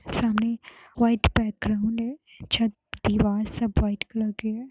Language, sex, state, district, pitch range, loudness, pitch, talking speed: Hindi, female, Bihar, Muzaffarpur, 215-230 Hz, -26 LUFS, 220 Hz, 140 wpm